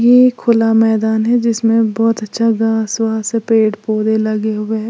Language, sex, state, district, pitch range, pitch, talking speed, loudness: Hindi, female, Uttar Pradesh, Lalitpur, 220-230 Hz, 225 Hz, 185 wpm, -14 LUFS